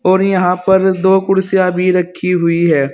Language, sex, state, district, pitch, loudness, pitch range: Hindi, male, Uttar Pradesh, Saharanpur, 185 Hz, -13 LUFS, 180-190 Hz